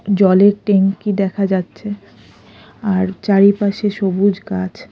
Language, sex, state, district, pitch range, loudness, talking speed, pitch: Bengali, female, Odisha, Khordha, 190-205 Hz, -16 LUFS, 110 wpm, 195 Hz